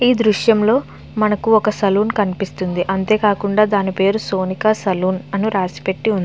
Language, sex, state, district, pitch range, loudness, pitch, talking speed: Telugu, female, Andhra Pradesh, Visakhapatnam, 190-215 Hz, -17 LUFS, 200 Hz, 145 wpm